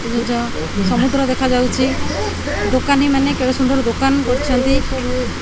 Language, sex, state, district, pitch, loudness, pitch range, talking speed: Odia, female, Odisha, Khordha, 260 Hz, -17 LUFS, 250-270 Hz, 90 wpm